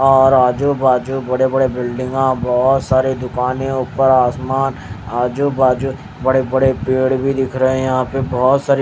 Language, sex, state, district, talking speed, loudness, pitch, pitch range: Hindi, male, Haryana, Rohtak, 135 wpm, -16 LUFS, 130 Hz, 130-135 Hz